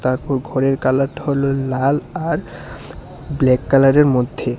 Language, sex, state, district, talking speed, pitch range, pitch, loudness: Bengali, male, Tripura, West Tripura, 120 wpm, 130-140 Hz, 135 Hz, -17 LUFS